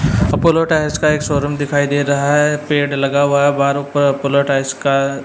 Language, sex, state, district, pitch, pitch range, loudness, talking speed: Hindi, male, Haryana, Jhajjar, 145 Hz, 140-150 Hz, -15 LUFS, 205 wpm